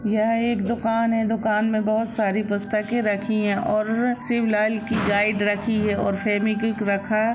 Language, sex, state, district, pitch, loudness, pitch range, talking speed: Hindi, female, Jharkhand, Jamtara, 215 Hz, -22 LUFS, 210-225 Hz, 165 wpm